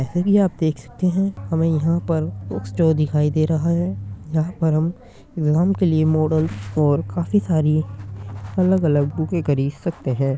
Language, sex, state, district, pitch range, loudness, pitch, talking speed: Hindi, male, Uttar Pradesh, Muzaffarnagar, 140-170 Hz, -20 LUFS, 155 Hz, 175 wpm